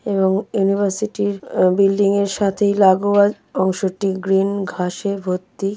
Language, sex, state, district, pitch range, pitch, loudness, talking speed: Bengali, female, West Bengal, Jalpaiguri, 190-200 Hz, 195 Hz, -18 LUFS, 115 wpm